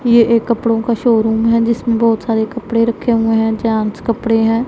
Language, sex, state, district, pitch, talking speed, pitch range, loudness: Hindi, female, Punjab, Pathankot, 230 Hz, 205 wpm, 225-235 Hz, -15 LUFS